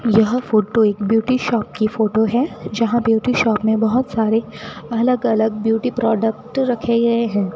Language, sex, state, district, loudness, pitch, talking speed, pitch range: Hindi, female, Rajasthan, Bikaner, -18 LUFS, 225 Hz, 165 wpm, 220-240 Hz